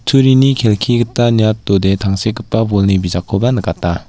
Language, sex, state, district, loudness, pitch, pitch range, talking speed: Garo, male, Meghalaya, West Garo Hills, -13 LUFS, 110 Hz, 95-120 Hz, 120 wpm